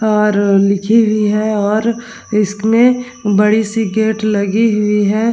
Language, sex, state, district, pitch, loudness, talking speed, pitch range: Hindi, female, Bihar, Vaishali, 215 Hz, -14 LUFS, 145 wpm, 210-225 Hz